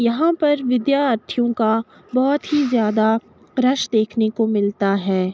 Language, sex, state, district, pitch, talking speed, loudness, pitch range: Hindi, female, Uttar Pradesh, Jalaun, 235 Hz, 135 wpm, -19 LUFS, 220-265 Hz